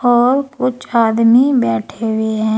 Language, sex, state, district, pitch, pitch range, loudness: Hindi, female, Uttar Pradesh, Saharanpur, 235 Hz, 220-250 Hz, -14 LUFS